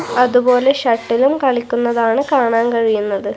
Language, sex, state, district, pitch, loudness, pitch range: Malayalam, female, Kerala, Kasaragod, 240 Hz, -15 LUFS, 230-250 Hz